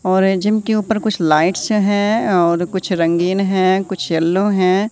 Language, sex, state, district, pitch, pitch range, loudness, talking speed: Hindi, male, Madhya Pradesh, Katni, 190 Hz, 180-205 Hz, -16 LUFS, 185 wpm